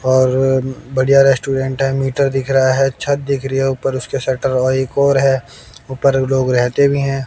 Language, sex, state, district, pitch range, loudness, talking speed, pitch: Hindi, male, Haryana, Jhajjar, 130-135 Hz, -15 LUFS, 200 wpm, 135 Hz